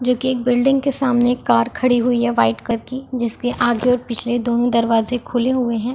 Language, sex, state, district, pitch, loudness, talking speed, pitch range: Hindi, female, Chhattisgarh, Balrampur, 245 Hz, -18 LUFS, 220 wpm, 235-250 Hz